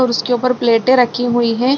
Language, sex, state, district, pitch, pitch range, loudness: Hindi, female, Bihar, Sitamarhi, 245 Hz, 240-255 Hz, -14 LUFS